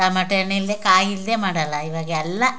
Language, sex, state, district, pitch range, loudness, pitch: Kannada, female, Karnataka, Chamarajanagar, 165-200 Hz, -20 LUFS, 190 Hz